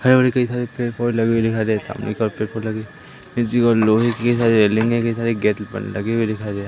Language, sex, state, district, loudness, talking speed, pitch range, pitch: Hindi, male, Madhya Pradesh, Katni, -19 LUFS, 250 wpm, 110-120 Hz, 115 Hz